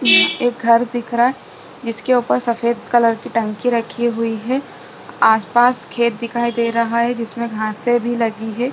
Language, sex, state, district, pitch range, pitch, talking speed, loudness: Hindi, female, Bihar, Saharsa, 230-240 Hz, 235 Hz, 170 wpm, -18 LUFS